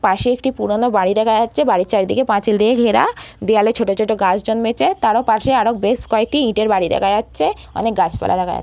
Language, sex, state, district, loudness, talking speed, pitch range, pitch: Bengali, female, West Bengal, Purulia, -16 LUFS, 200 wpm, 210-245 Hz, 220 Hz